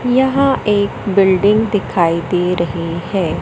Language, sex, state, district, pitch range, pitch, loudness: Hindi, male, Madhya Pradesh, Katni, 175-210 Hz, 195 Hz, -15 LUFS